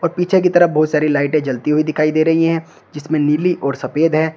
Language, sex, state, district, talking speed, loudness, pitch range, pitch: Hindi, male, Uttar Pradesh, Shamli, 235 wpm, -16 LUFS, 150-165 Hz, 155 Hz